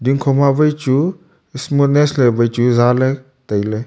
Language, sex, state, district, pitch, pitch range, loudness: Wancho, male, Arunachal Pradesh, Longding, 135 Hz, 120-145 Hz, -15 LUFS